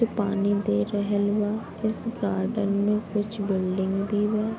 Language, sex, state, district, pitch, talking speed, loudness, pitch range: Bhojpuri, female, Bihar, Gopalganj, 205 Hz, 170 wpm, -26 LUFS, 200-215 Hz